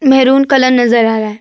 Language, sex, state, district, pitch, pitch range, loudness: Hindi, female, Uttar Pradesh, Jyotiba Phule Nagar, 255 Hz, 225-270 Hz, -10 LUFS